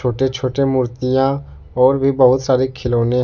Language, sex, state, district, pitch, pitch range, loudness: Hindi, male, Jharkhand, Deoghar, 130 Hz, 125-135 Hz, -16 LUFS